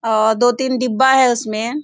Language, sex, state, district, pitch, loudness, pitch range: Hindi, female, Bihar, Sitamarhi, 245 Hz, -15 LUFS, 220-260 Hz